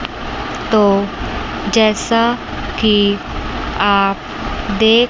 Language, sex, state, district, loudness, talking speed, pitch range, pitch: Hindi, male, Chandigarh, Chandigarh, -16 LUFS, 60 wpm, 200-230 Hz, 215 Hz